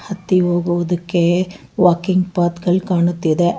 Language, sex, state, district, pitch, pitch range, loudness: Kannada, female, Karnataka, Bangalore, 175 Hz, 175-185 Hz, -17 LUFS